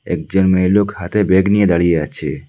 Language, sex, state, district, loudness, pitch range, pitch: Bengali, male, Assam, Hailakandi, -15 LUFS, 85-100 Hz, 95 Hz